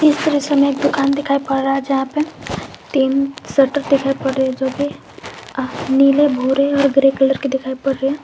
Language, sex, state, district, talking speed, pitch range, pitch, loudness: Hindi, female, Jharkhand, Garhwa, 195 wpm, 270-285 Hz, 275 Hz, -17 LUFS